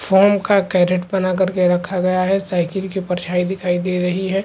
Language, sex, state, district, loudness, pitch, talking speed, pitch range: Hindi, male, Chhattisgarh, Bastar, -18 LUFS, 185 Hz, 200 wpm, 180-190 Hz